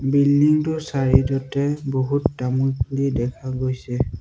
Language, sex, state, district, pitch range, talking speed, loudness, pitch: Assamese, male, Assam, Sonitpur, 130-140 Hz, 130 wpm, -21 LUFS, 135 Hz